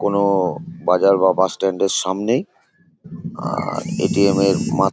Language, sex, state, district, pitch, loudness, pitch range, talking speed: Bengali, male, West Bengal, Paschim Medinipur, 95 Hz, -18 LUFS, 95-100 Hz, 145 wpm